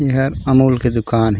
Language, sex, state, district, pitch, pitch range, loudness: Chhattisgarhi, male, Chhattisgarh, Raigarh, 130 Hz, 115-130 Hz, -15 LUFS